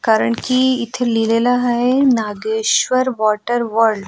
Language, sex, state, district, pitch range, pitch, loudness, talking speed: Marathi, female, Goa, North and South Goa, 220-255 Hz, 235 Hz, -16 LUFS, 130 wpm